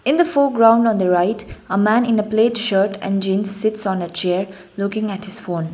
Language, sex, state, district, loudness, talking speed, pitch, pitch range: English, female, Sikkim, Gangtok, -18 LUFS, 230 wpm, 200 Hz, 190-225 Hz